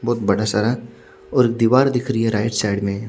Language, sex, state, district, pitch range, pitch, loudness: Hindi, male, Odisha, Khordha, 105-120 Hz, 115 Hz, -19 LUFS